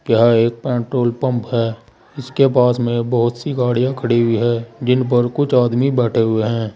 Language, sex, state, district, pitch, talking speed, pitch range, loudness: Hindi, male, Uttar Pradesh, Saharanpur, 120 Hz, 185 wpm, 115-125 Hz, -17 LUFS